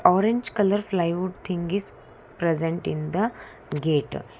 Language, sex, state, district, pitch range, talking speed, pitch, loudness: English, female, Karnataka, Bangalore, 165-205 Hz, 125 wpm, 180 Hz, -25 LUFS